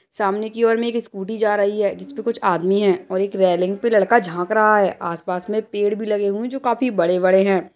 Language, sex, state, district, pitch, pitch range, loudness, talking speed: Hindi, female, Uttarakhand, Uttarkashi, 205 Hz, 185-220 Hz, -19 LUFS, 255 wpm